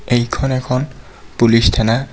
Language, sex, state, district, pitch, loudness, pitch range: Assamese, male, Assam, Kamrup Metropolitan, 125 Hz, -15 LUFS, 115-130 Hz